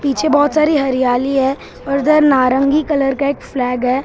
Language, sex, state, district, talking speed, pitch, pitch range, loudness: Hindi, male, Maharashtra, Mumbai Suburban, 220 wpm, 275 Hz, 260-290 Hz, -15 LUFS